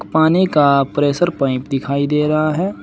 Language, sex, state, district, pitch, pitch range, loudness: Hindi, male, Uttar Pradesh, Saharanpur, 150 Hz, 140-160 Hz, -16 LUFS